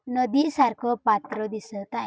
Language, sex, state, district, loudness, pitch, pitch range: Marathi, female, Maharashtra, Dhule, -25 LUFS, 235 Hz, 215-250 Hz